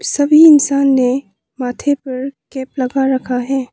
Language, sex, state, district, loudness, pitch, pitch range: Hindi, female, Arunachal Pradesh, Papum Pare, -14 LUFS, 265 Hz, 255-280 Hz